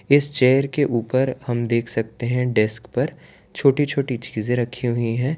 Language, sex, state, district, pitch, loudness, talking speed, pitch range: Hindi, male, Gujarat, Valsad, 125 Hz, -21 LUFS, 180 wpm, 115-135 Hz